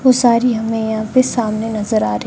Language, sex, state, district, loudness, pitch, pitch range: Hindi, male, Rajasthan, Bikaner, -16 LUFS, 225 Hz, 220-245 Hz